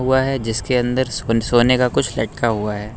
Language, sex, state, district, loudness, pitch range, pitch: Hindi, male, Uttar Pradesh, Lucknow, -18 LUFS, 115-125 Hz, 120 Hz